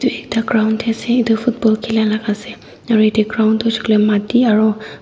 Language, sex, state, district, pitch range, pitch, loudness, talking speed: Nagamese, female, Nagaland, Dimapur, 215-230 Hz, 220 Hz, -16 LUFS, 205 wpm